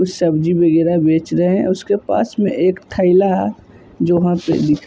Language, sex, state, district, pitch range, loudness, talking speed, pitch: Hindi, male, Uttar Pradesh, Budaun, 160-185 Hz, -16 LUFS, 195 wpm, 175 Hz